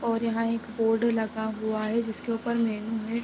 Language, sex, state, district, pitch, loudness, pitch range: Hindi, female, Chhattisgarh, Raigarh, 230 Hz, -28 LUFS, 220-230 Hz